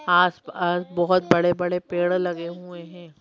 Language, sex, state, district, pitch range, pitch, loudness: Hindi, female, Madhya Pradesh, Bhopal, 175-180 Hz, 175 Hz, -22 LUFS